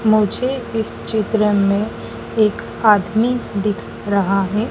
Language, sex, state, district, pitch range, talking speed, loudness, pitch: Hindi, female, Madhya Pradesh, Dhar, 205-225 Hz, 115 wpm, -18 LUFS, 215 Hz